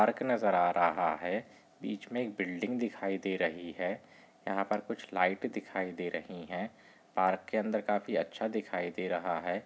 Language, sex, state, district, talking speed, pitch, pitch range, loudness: Hindi, male, Maharashtra, Chandrapur, 185 wpm, 95 Hz, 90-105 Hz, -34 LUFS